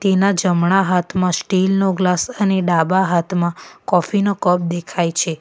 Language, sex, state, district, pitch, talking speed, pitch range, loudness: Gujarati, female, Gujarat, Valsad, 185 Hz, 145 wpm, 175-195 Hz, -17 LUFS